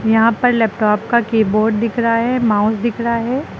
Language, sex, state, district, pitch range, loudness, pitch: Hindi, female, Uttar Pradesh, Lucknow, 220-235 Hz, -16 LUFS, 230 Hz